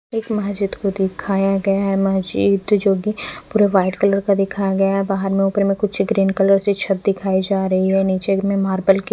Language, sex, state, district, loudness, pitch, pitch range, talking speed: Hindi, female, Chandigarh, Chandigarh, -18 LUFS, 195 Hz, 195-200 Hz, 190 wpm